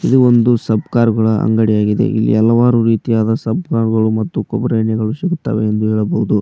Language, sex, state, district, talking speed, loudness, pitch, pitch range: Kannada, male, Karnataka, Koppal, 150 wpm, -14 LUFS, 110 Hz, 110-115 Hz